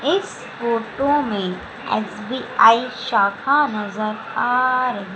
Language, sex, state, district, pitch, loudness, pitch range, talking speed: Hindi, female, Madhya Pradesh, Umaria, 230 Hz, -20 LUFS, 210-255 Hz, 95 wpm